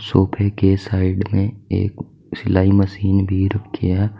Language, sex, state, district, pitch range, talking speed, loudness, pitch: Hindi, male, Uttar Pradesh, Saharanpur, 95-105 Hz, 145 wpm, -19 LUFS, 100 Hz